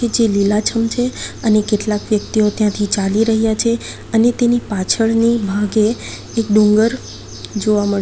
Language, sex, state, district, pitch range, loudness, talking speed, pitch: Gujarati, female, Gujarat, Valsad, 210-230 Hz, -16 LUFS, 135 wpm, 215 Hz